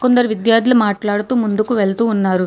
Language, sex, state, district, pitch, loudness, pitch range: Telugu, female, Telangana, Hyderabad, 220 Hz, -15 LUFS, 205-235 Hz